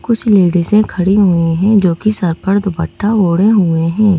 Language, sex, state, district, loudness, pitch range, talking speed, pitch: Hindi, female, Madhya Pradesh, Bhopal, -12 LUFS, 175-210 Hz, 200 wpm, 195 Hz